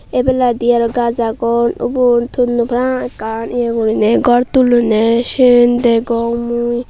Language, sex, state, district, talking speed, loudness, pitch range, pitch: Chakma, female, Tripura, Unakoti, 150 wpm, -14 LUFS, 235-245 Hz, 240 Hz